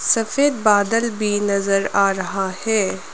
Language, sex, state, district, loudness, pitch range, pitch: Hindi, female, Arunachal Pradesh, Lower Dibang Valley, -19 LUFS, 195-225 Hz, 205 Hz